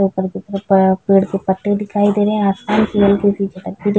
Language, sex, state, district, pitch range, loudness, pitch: Hindi, female, Chhattisgarh, Bilaspur, 195-205 Hz, -16 LUFS, 200 Hz